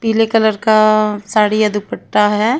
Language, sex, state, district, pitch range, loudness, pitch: Hindi, female, Himachal Pradesh, Shimla, 210-220 Hz, -14 LUFS, 215 Hz